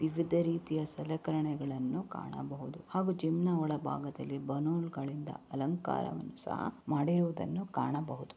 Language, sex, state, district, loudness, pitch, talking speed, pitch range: Kannada, female, Karnataka, Raichur, -35 LUFS, 155 Hz, 85 wpm, 140-170 Hz